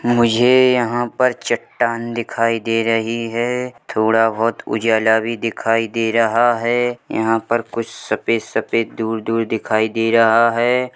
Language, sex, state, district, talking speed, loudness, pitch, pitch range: Hindi, male, Chhattisgarh, Bilaspur, 130 wpm, -17 LUFS, 115 Hz, 115-120 Hz